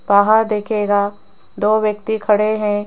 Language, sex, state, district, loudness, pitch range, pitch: Hindi, female, Rajasthan, Jaipur, -17 LUFS, 205-215 Hz, 210 Hz